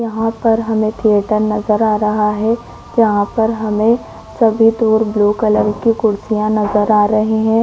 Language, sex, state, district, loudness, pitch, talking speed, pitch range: Hindi, female, Chhattisgarh, Korba, -15 LUFS, 215 Hz, 165 wpm, 210-225 Hz